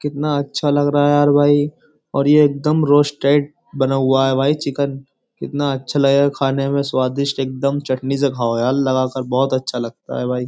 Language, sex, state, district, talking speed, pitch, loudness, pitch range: Hindi, male, Uttar Pradesh, Jyotiba Phule Nagar, 200 wpm, 140 Hz, -17 LUFS, 130-145 Hz